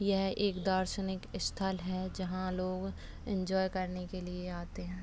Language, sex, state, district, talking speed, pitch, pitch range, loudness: Hindi, male, Bihar, Purnia, 155 wpm, 185 Hz, 185-190 Hz, -36 LUFS